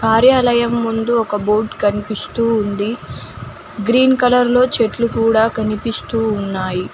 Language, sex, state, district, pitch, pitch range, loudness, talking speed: Telugu, female, Telangana, Mahabubabad, 225 Hz, 210-235 Hz, -16 LUFS, 110 wpm